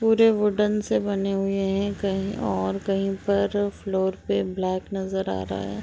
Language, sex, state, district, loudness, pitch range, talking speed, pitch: Hindi, female, Uttar Pradesh, Deoria, -25 LUFS, 190-205 Hz, 175 wpm, 195 Hz